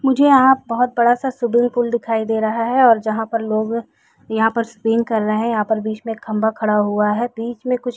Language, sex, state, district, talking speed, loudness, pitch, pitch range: Hindi, female, Chhattisgarh, Raigarh, 240 wpm, -18 LUFS, 230 Hz, 220-240 Hz